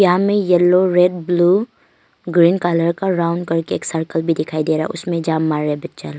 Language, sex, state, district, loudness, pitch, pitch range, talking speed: Hindi, female, Arunachal Pradesh, Longding, -17 LUFS, 170 Hz, 160-180 Hz, 225 wpm